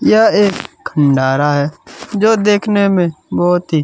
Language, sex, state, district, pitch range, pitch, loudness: Hindi, male, Chhattisgarh, Kabirdham, 145-205 Hz, 180 Hz, -14 LUFS